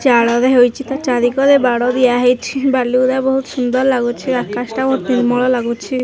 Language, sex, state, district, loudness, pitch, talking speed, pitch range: Odia, male, Odisha, Khordha, -15 LUFS, 250 Hz, 170 wpm, 245-265 Hz